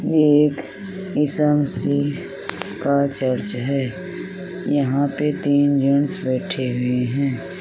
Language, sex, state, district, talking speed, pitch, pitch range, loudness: Hindi, male, Uttar Pradesh, Jalaun, 100 wpm, 145 Hz, 135-150 Hz, -21 LUFS